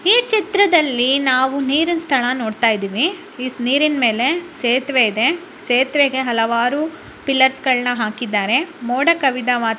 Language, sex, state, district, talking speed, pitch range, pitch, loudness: Kannada, female, Karnataka, Raichur, 130 wpm, 245-330 Hz, 265 Hz, -17 LUFS